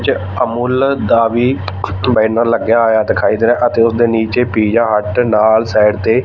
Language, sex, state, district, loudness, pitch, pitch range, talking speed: Punjabi, male, Punjab, Fazilka, -13 LUFS, 115 Hz, 105-120 Hz, 175 wpm